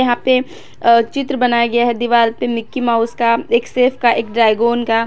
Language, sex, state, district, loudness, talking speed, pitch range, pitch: Hindi, female, Jharkhand, Garhwa, -15 LUFS, 190 wpm, 230-250 Hz, 235 Hz